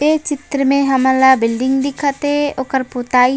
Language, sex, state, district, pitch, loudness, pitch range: Chhattisgarhi, female, Chhattisgarh, Raigarh, 270 Hz, -15 LUFS, 260-290 Hz